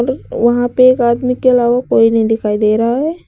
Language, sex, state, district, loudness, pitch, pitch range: Hindi, female, Uttar Pradesh, Lucknow, -13 LUFS, 240 Hz, 230-255 Hz